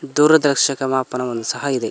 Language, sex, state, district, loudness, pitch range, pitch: Kannada, male, Karnataka, Koppal, -18 LUFS, 125-145 Hz, 135 Hz